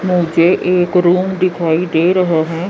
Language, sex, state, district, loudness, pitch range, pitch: Hindi, female, Chandigarh, Chandigarh, -14 LUFS, 165-185 Hz, 175 Hz